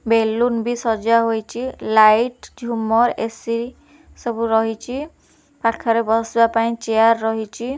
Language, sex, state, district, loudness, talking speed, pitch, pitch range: Odia, female, Odisha, Khordha, -19 LUFS, 110 wpm, 230 Hz, 225-235 Hz